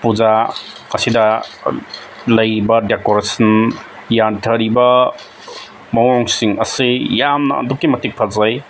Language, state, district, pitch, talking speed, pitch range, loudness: Manipuri, Manipur, Imphal West, 115 Hz, 70 wpm, 110-125 Hz, -15 LUFS